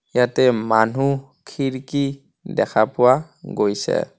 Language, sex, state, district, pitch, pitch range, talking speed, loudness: Assamese, male, Assam, Kamrup Metropolitan, 130 Hz, 110-140 Hz, 85 wpm, -20 LUFS